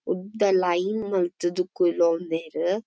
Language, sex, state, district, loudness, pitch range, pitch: Tulu, female, Karnataka, Dakshina Kannada, -24 LUFS, 175-200 Hz, 180 Hz